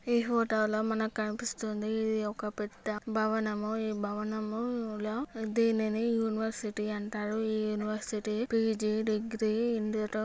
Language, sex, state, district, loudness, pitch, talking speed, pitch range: Telugu, female, Andhra Pradesh, Guntur, -32 LUFS, 215 Hz, 105 wpm, 215-225 Hz